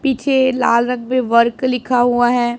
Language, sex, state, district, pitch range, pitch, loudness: Hindi, female, Punjab, Pathankot, 240-260 Hz, 250 Hz, -15 LUFS